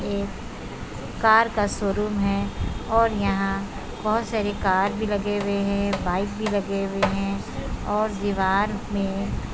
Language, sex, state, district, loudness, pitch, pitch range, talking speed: Hindi, female, Uttar Pradesh, Budaun, -24 LUFS, 200 Hz, 195-210 Hz, 150 wpm